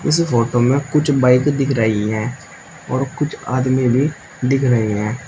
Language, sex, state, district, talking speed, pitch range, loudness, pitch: Hindi, male, Uttar Pradesh, Shamli, 170 wpm, 120-145 Hz, -17 LUFS, 130 Hz